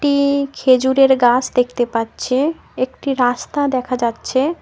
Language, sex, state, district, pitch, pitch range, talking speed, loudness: Bengali, female, West Bengal, Cooch Behar, 255 Hz, 250-280 Hz, 115 wpm, -17 LUFS